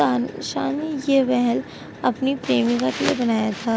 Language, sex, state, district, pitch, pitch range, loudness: Hindi, female, Uttar Pradesh, Etah, 245 Hz, 215-270 Hz, -22 LUFS